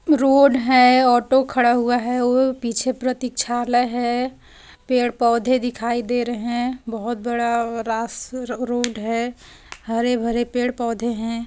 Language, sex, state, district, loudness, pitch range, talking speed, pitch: Hindi, female, Chhattisgarh, Balrampur, -20 LUFS, 235-250 Hz, 140 wpm, 245 Hz